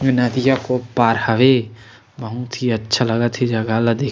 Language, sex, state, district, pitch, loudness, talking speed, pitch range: Chhattisgarhi, male, Chhattisgarh, Sarguja, 120 Hz, -18 LUFS, 175 wpm, 115-125 Hz